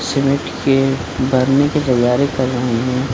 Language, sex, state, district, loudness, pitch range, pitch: Hindi, male, Bihar, Supaul, -16 LUFS, 125-140 Hz, 130 Hz